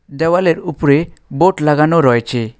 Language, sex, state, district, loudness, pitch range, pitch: Bengali, male, West Bengal, Alipurduar, -14 LUFS, 135-170 Hz, 150 Hz